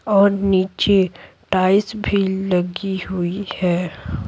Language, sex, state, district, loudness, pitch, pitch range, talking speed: Hindi, female, Bihar, Patna, -19 LUFS, 190 Hz, 180-200 Hz, 85 wpm